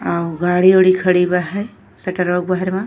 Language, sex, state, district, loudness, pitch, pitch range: Bhojpuri, female, Uttar Pradesh, Ghazipur, -16 LUFS, 185 Hz, 180-185 Hz